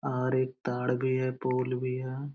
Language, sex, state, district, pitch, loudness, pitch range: Hindi, male, Uttar Pradesh, Hamirpur, 130 Hz, -30 LUFS, 125-130 Hz